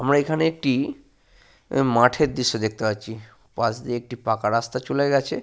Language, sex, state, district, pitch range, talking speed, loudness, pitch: Bengali, male, Jharkhand, Sahebganj, 115-140 Hz, 155 wpm, -23 LUFS, 125 Hz